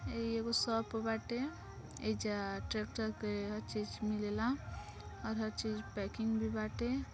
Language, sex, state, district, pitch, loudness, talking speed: Bhojpuri, female, Uttar Pradesh, Deoria, 215 Hz, -39 LUFS, 135 wpm